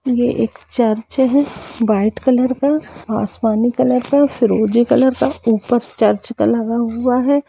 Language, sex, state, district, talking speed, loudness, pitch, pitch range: Hindi, female, Jharkhand, Jamtara, 150 wpm, -16 LUFS, 245 Hz, 225-265 Hz